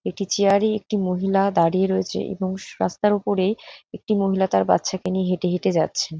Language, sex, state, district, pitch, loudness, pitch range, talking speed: Bengali, female, West Bengal, North 24 Parganas, 190 Hz, -22 LUFS, 185-200 Hz, 175 wpm